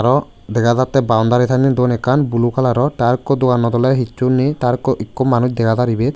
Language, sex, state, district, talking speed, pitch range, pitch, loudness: Chakma, male, Tripura, West Tripura, 225 wpm, 120-130 Hz, 125 Hz, -16 LUFS